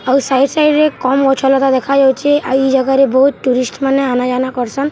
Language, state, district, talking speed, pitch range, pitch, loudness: Sambalpuri, Odisha, Sambalpur, 230 wpm, 260-275 Hz, 270 Hz, -13 LUFS